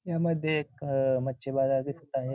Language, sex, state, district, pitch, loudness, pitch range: Marathi, male, Maharashtra, Pune, 135 Hz, -29 LUFS, 135-155 Hz